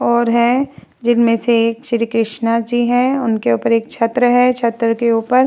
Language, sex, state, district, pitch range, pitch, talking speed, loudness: Hindi, female, Uttar Pradesh, Muzaffarnagar, 230-245 Hz, 235 Hz, 210 wpm, -15 LUFS